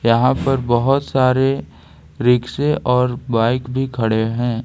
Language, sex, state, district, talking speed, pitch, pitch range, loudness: Hindi, male, Jharkhand, Ranchi, 130 wpm, 125 Hz, 115-130 Hz, -18 LUFS